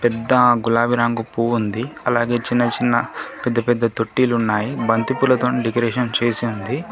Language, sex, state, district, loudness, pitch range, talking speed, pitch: Telugu, male, Telangana, Komaram Bheem, -19 LUFS, 115-125 Hz, 130 wpm, 120 Hz